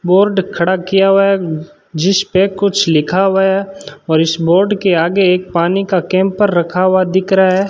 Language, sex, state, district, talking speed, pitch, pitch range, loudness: Hindi, male, Rajasthan, Bikaner, 185 wpm, 190 Hz, 175-195 Hz, -13 LUFS